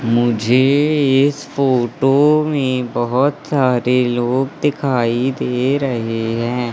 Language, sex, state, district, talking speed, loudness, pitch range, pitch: Hindi, male, Madhya Pradesh, Katni, 100 wpm, -16 LUFS, 120-140 Hz, 130 Hz